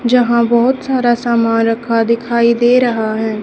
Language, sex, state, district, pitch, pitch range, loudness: Hindi, female, Haryana, Charkhi Dadri, 235 Hz, 230-240 Hz, -13 LUFS